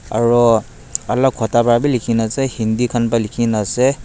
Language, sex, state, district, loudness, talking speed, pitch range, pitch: Nagamese, male, Nagaland, Dimapur, -16 LUFS, 175 wpm, 115-125 Hz, 120 Hz